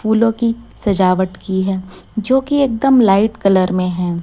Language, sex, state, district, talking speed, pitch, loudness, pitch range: Hindi, female, Chhattisgarh, Raipur, 170 wpm, 200 Hz, -15 LUFS, 185-230 Hz